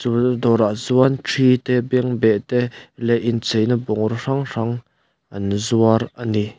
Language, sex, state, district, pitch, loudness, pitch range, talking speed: Mizo, male, Mizoram, Aizawl, 120 Hz, -19 LUFS, 110-125 Hz, 135 wpm